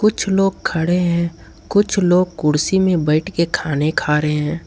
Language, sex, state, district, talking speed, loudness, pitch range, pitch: Hindi, male, Jharkhand, Ranchi, 180 wpm, -17 LUFS, 155-190 Hz, 170 Hz